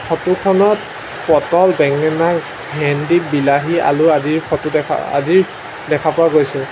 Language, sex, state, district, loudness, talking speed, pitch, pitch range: Assamese, male, Assam, Sonitpur, -15 LUFS, 125 wpm, 160 Hz, 150-175 Hz